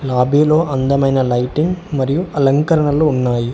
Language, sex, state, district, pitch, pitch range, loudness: Telugu, male, Telangana, Hyderabad, 140 Hz, 130-155 Hz, -15 LUFS